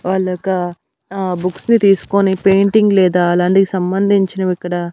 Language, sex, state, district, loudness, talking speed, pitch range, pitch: Telugu, female, Andhra Pradesh, Annamaya, -14 LUFS, 110 wpm, 180-195 Hz, 190 Hz